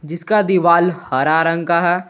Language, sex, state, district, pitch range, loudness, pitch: Hindi, male, Jharkhand, Garhwa, 165-180 Hz, -15 LUFS, 170 Hz